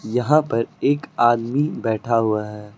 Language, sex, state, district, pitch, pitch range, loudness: Hindi, male, Uttar Pradesh, Lucknow, 115 Hz, 110-140 Hz, -20 LUFS